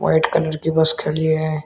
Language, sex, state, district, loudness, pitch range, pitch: Hindi, male, Uttar Pradesh, Shamli, -18 LUFS, 155-160 Hz, 160 Hz